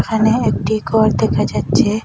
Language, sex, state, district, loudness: Bengali, female, Assam, Hailakandi, -16 LUFS